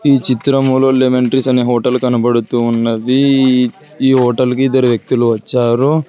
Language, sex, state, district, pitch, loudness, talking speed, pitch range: Telugu, male, Telangana, Hyderabad, 125 Hz, -13 LUFS, 140 wpm, 120-135 Hz